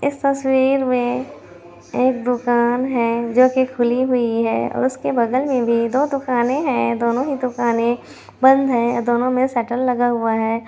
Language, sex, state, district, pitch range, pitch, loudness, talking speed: Hindi, female, Bihar, Kishanganj, 235-260 Hz, 245 Hz, -18 LUFS, 165 wpm